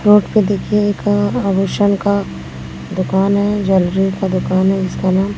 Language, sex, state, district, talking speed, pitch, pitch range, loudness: Hindi, female, Bihar, Katihar, 155 wpm, 195 Hz, 185-205 Hz, -15 LUFS